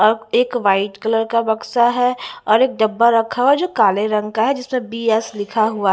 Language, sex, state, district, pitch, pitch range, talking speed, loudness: Hindi, female, Bihar, West Champaran, 225 Hz, 220-245 Hz, 225 wpm, -17 LUFS